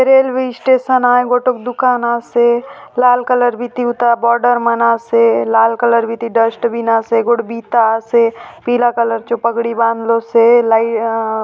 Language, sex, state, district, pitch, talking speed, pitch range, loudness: Halbi, female, Chhattisgarh, Bastar, 235 Hz, 155 wpm, 230-245 Hz, -14 LUFS